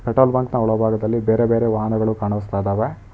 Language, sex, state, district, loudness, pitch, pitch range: Kannada, male, Karnataka, Bangalore, -19 LUFS, 110 Hz, 105-115 Hz